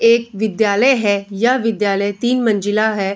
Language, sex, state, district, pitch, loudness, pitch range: Hindi, female, Bihar, Bhagalpur, 215 Hz, -16 LUFS, 200-235 Hz